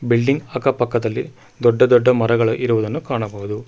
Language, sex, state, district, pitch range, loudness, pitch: Kannada, male, Karnataka, Bangalore, 115-125 Hz, -18 LUFS, 120 Hz